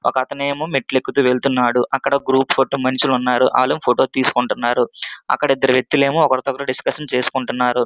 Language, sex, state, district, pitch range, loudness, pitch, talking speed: Telugu, male, Andhra Pradesh, Srikakulam, 130-140 Hz, -17 LUFS, 130 Hz, 175 wpm